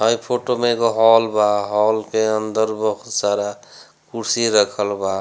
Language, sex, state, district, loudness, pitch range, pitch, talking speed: Bhojpuri, male, Bihar, Gopalganj, -18 LUFS, 105-115 Hz, 110 Hz, 160 wpm